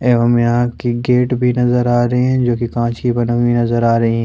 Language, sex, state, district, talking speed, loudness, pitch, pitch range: Hindi, male, Jharkhand, Ranchi, 265 wpm, -15 LUFS, 120 Hz, 120-125 Hz